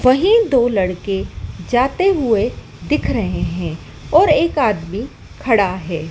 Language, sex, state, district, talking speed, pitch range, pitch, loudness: Hindi, female, Madhya Pradesh, Dhar, 130 wpm, 195-270 Hz, 225 Hz, -17 LUFS